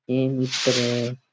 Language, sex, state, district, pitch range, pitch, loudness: Rajasthani, male, Rajasthan, Churu, 120-130 Hz, 130 Hz, -23 LUFS